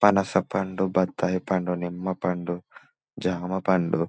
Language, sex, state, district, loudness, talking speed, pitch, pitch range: Telugu, male, Telangana, Nalgonda, -26 LUFS, 90 wpm, 90 Hz, 90-95 Hz